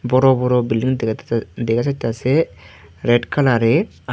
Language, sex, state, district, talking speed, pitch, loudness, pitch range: Bengali, male, Tripura, Dhalai, 145 wpm, 120 Hz, -18 LUFS, 115-130 Hz